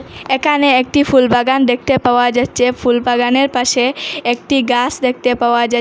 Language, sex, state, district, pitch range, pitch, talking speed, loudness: Bengali, female, Assam, Hailakandi, 245-265 Hz, 250 Hz, 125 wpm, -14 LUFS